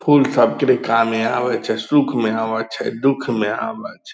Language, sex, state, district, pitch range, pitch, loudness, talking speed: Angika, male, Bihar, Purnia, 110-135 Hz, 115 Hz, -18 LUFS, 200 wpm